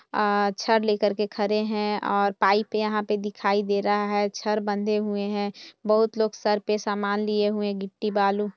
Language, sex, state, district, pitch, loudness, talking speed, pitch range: Hindi, female, Bihar, Saharsa, 210 Hz, -25 LUFS, 195 wpm, 205-210 Hz